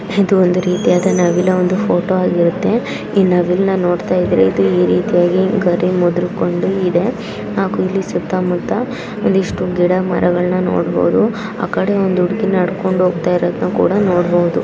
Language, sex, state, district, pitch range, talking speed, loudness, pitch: Kannada, female, Karnataka, Belgaum, 175-190 Hz, 130 wpm, -15 LUFS, 180 Hz